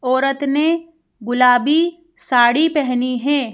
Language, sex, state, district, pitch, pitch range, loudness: Hindi, female, Madhya Pradesh, Bhopal, 280 Hz, 250-320 Hz, -16 LUFS